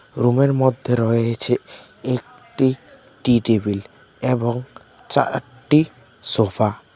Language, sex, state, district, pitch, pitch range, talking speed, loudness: Bengali, male, Tripura, West Tripura, 125 Hz, 115-130 Hz, 85 wpm, -20 LUFS